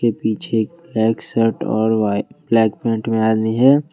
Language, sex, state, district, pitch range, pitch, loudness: Hindi, male, Jharkhand, Ranchi, 110-115 Hz, 110 Hz, -18 LUFS